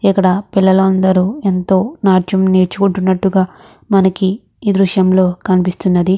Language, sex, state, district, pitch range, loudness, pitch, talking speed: Telugu, female, Andhra Pradesh, Krishna, 185-195 Hz, -13 LUFS, 190 Hz, 95 wpm